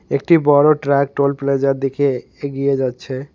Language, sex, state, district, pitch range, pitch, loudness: Bengali, male, West Bengal, Alipurduar, 135-145 Hz, 140 Hz, -17 LUFS